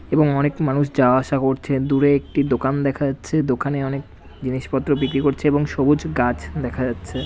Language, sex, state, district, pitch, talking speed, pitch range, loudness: Bengali, male, West Bengal, Jalpaiguri, 135 Hz, 175 wpm, 130-145 Hz, -20 LUFS